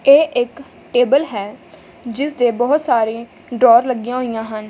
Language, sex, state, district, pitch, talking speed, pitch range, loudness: Punjabi, female, Punjab, Fazilka, 245 Hz, 140 wpm, 230-265 Hz, -16 LUFS